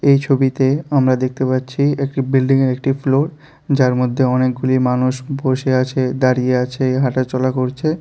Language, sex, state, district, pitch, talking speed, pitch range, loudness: Bengali, female, Tripura, West Tripura, 130 Hz, 140 wpm, 130-135 Hz, -17 LUFS